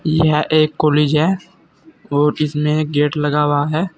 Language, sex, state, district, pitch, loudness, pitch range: Hindi, male, Uttar Pradesh, Saharanpur, 150 Hz, -16 LUFS, 150-155 Hz